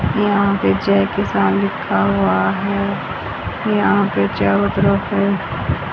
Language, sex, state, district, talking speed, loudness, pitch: Hindi, female, Haryana, Charkhi Dadri, 120 wpm, -17 LUFS, 100 Hz